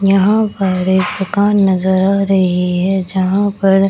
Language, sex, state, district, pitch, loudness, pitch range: Hindi, female, Bihar, Samastipur, 195 Hz, -14 LUFS, 185-200 Hz